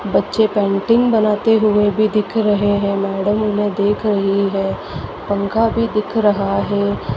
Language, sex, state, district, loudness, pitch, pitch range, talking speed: Hindi, female, Madhya Pradesh, Dhar, -17 LUFS, 205 Hz, 195-215 Hz, 150 wpm